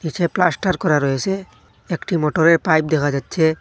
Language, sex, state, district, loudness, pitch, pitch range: Bengali, male, Assam, Hailakandi, -18 LUFS, 160 Hz, 155-180 Hz